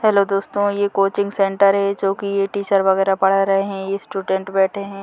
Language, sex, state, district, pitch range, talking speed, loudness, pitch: Hindi, female, Chhattisgarh, Bilaspur, 195-200 Hz, 200 wpm, -18 LUFS, 195 Hz